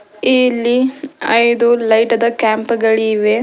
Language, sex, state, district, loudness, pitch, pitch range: Kannada, female, Karnataka, Bidar, -14 LUFS, 235 Hz, 220-240 Hz